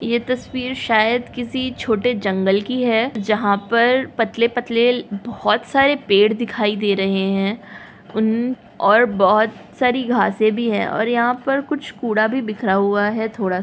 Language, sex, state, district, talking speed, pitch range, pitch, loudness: Hindi, female, Uttar Pradesh, Jyotiba Phule Nagar, 165 wpm, 210-245 Hz, 230 Hz, -18 LUFS